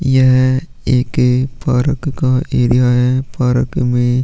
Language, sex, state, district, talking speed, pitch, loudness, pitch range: Hindi, male, Chhattisgarh, Sukma, 125 wpm, 130 Hz, -14 LUFS, 125-130 Hz